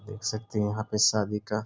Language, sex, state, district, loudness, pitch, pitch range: Hindi, male, Bihar, Sitamarhi, -27 LUFS, 105 Hz, 105-110 Hz